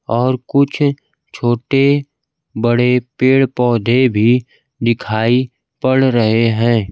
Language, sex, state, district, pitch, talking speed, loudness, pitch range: Hindi, male, Bihar, Kaimur, 125 Hz, 95 wpm, -15 LUFS, 115-135 Hz